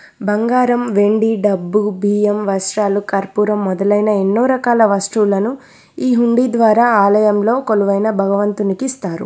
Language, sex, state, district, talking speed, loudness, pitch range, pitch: Telugu, female, Telangana, Nalgonda, 105 wpm, -15 LUFS, 200-230 Hz, 210 Hz